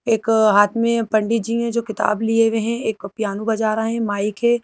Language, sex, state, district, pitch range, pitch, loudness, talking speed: Hindi, female, Madhya Pradesh, Bhopal, 215-230 Hz, 225 Hz, -19 LUFS, 235 wpm